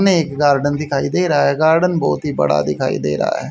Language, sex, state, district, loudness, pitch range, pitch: Hindi, male, Haryana, Rohtak, -16 LUFS, 140-160 Hz, 145 Hz